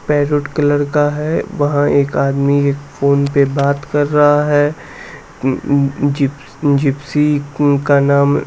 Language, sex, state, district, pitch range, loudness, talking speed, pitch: Hindi, male, Bihar, West Champaran, 140-145 Hz, -15 LUFS, 135 wpm, 145 Hz